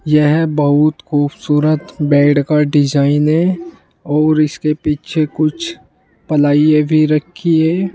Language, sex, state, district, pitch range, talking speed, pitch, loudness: Hindi, male, Uttar Pradesh, Saharanpur, 150-160 Hz, 115 wpm, 150 Hz, -14 LUFS